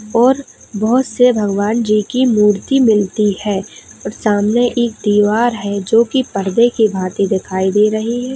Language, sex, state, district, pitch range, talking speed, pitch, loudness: Hindi, female, Uttar Pradesh, Hamirpur, 205-240 Hz, 165 wpm, 215 Hz, -15 LUFS